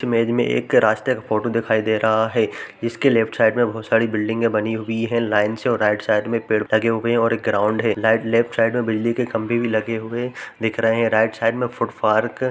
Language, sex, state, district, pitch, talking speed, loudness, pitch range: Hindi, male, Uttar Pradesh, Jalaun, 115 Hz, 245 wpm, -20 LUFS, 110-115 Hz